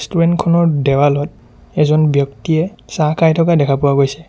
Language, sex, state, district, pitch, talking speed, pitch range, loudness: Assamese, male, Assam, Sonitpur, 155 Hz, 125 wpm, 140-170 Hz, -14 LUFS